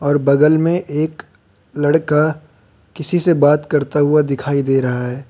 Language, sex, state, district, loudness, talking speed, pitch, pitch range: Hindi, male, Uttar Pradesh, Lucknow, -16 LUFS, 145 wpm, 145 Hz, 135-155 Hz